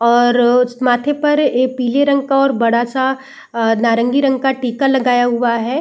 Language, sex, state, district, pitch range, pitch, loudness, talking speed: Hindi, female, Bihar, Saran, 240-275 Hz, 255 Hz, -15 LUFS, 165 wpm